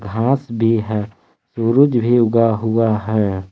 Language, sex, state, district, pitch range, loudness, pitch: Hindi, male, Jharkhand, Palamu, 105-115 Hz, -17 LUFS, 115 Hz